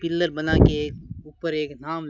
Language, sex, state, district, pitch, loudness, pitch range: Hindi, male, Rajasthan, Bikaner, 155 Hz, -23 LUFS, 150-165 Hz